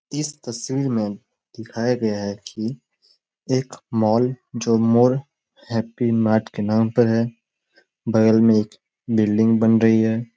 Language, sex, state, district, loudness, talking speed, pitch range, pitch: Hindi, male, Uttar Pradesh, Muzaffarnagar, -20 LUFS, 140 wpm, 110-120 Hz, 115 Hz